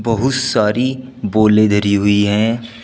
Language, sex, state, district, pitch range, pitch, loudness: Hindi, male, Uttar Pradesh, Shamli, 105-125 Hz, 110 Hz, -15 LUFS